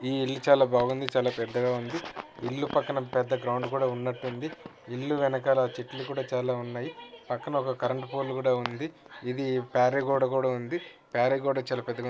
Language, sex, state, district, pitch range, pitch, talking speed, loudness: Telugu, male, Andhra Pradesh, Krishna, 125-135 Hz, 130 Hz, 165 wpm, -29 LUFS